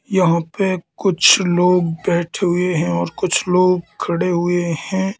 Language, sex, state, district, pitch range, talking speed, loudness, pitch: Hindi, male, Madhya Pradesh, Katni, 170-185 Hz, 150 wpm, -17 LUFS, 180 Hz